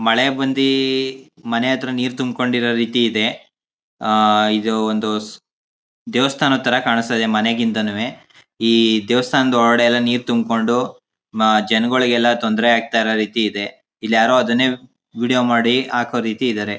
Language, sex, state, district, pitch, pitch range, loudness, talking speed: Kannada, male, Karnataka, Mysore, 120 Hz, 110-125 Hz, -17 LUFS, 130 wpm